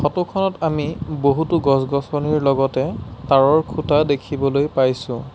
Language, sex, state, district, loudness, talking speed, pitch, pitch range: Assamese, male, Assam, Sonitpur, -19 LUFS, 125 wpm, 145 Hz, 135-155 Hz